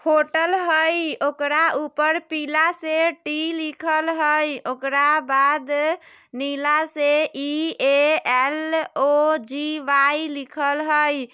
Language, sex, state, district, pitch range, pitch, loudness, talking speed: Bajjika, female, Bihar, Vaishali, 285-315 Hz, 300 Hz, -20 LUFS, 110 wpm